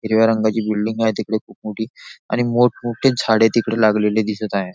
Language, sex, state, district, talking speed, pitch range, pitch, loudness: Marathi, male, Maharashtra, Nagpur, 175 wpm, 110-115 Hz, 110 Hz, -18 LUFS